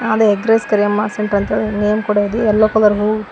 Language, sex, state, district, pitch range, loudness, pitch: Kannada, female, Karnataka, Koppal, 210-215 Hz, -15 LUFS, 210 Hz